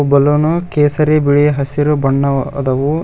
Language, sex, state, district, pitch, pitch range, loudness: Kannada, male, Karnataka, Koppal, 145 Hz, 140-150 Hz, -14 LUFS